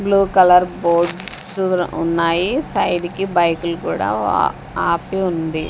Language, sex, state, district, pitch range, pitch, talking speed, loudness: Telugu, female, Andhra Pradesh, Sri Satya Sai, 170-190 Hz, 175 Hz, 115 wpm, -17 LUFS